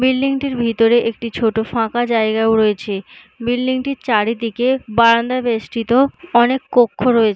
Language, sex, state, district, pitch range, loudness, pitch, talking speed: Bengali, female, West Bengal, Jhargram, 225-255 Hz, -17 LUFS, 235 Hz, 130 wpm